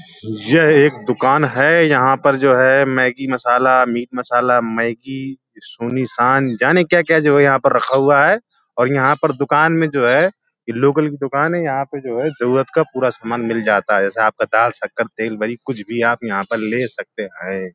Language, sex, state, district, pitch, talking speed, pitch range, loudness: Hindi, male, Uttar Pradesh, Hamirpur, 130 Hz, 185 wpm, 120-145 Hz, -15 LUFS